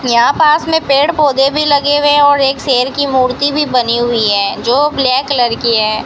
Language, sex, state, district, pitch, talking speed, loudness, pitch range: Hindi, female, Rajasthan, Bikaner, 275 Hz, 230 wpm, -11 LUFS, 245-290 Hz